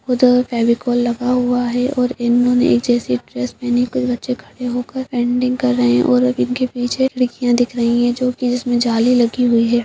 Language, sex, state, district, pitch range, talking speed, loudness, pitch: Hindi, female, Uttarakhand, Uttarkashi, 235-250 Hz, 205 wpm, -17 LUFS, 245 Hz